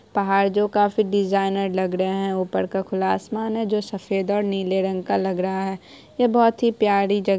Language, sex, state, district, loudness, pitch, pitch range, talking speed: Hindi, female, Bihar, Araria, -22 LUFS, 195 Hz, 190-210 Hz, 220 wpm